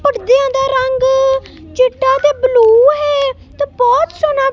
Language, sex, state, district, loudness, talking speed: Punjabi, female, Punjab, Kapurthala, -12 LUFS, 130 wpm